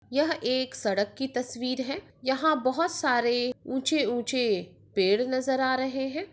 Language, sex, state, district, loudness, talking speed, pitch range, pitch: Hindi, female, Maharashtra, Sindhudurg, -27 LUFS, 150 wpm, 245-270 Hz, 260 Hz